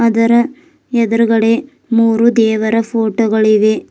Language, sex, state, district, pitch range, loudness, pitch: Kannada, female, Karnataka, Bidar, 225-235 Hz, -13 LUFS, 230 Hz